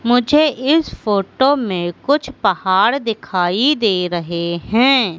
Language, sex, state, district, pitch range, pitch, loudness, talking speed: Hindi, female, Madhya Pradesh, Katni, 180-270 Hz, 225 Hz, -16 LUFS, 115 wpm